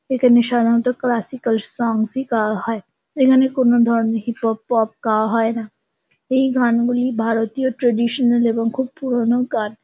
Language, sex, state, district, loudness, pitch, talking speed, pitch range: Bengali, female, West Bengal, Kolkata, -18 LUFS, 235 Hz, 145 wpm, 225-250 Hz